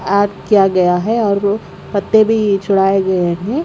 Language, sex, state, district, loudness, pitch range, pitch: Hindi, female, Odisha, Khordha, -14 LUFS, 190-210 Hz, 200 Hz